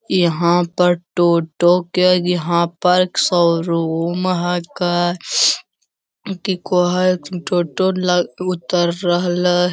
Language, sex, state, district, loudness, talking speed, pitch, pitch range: Hindi, male, Bihar, Lakhisarai, -17 LUFS, 100 wpm, 175 Hz, 175-180 Hz